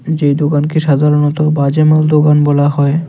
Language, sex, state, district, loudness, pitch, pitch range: Bengali, male, Tripura, West Tripura, -11 LUFS, 150 Hz, 145-155 Hz